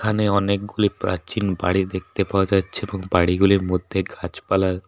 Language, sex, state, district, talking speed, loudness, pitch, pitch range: Bengali, male, West Bengal, Paschim Medinipur, 150 wpm, -21 LUFS, 95 Hz, 95-100 Hz